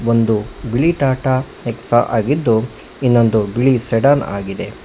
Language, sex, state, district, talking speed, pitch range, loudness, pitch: Kannada, male, Karnataka, Bangalore, 110 wpm, 110-130 Hz, -16 LUFS, 120 Hz